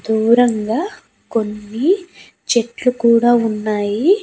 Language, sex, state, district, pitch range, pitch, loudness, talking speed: Telugu, female, Andhra Pradesh, Annamaya, 220-250 Hz, 235 Hz, -16 LUFS, 70 wpm